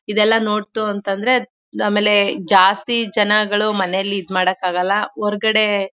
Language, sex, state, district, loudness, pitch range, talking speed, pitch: Kannada, female, Karnataka, Mysore, -17 LUFS, 195-215 Hz, 100 wpm, 210 Hz